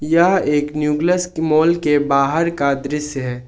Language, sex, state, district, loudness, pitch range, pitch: Hindi, male, Jharkhand, Ranchi, -17 LUFS, 140-165 Hz, 150 Hz